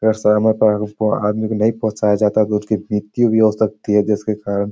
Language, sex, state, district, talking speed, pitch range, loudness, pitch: Hindi, male, Bihar, Jamui, 265 wpm, 105-110 Hz, -17 LUFS, 105 Hz